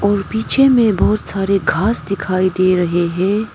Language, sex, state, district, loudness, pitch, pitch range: Hindi, female, Arunachal Pradesh, Papum Pare, -15 LUFS, 195 Hz, 185-215 Hz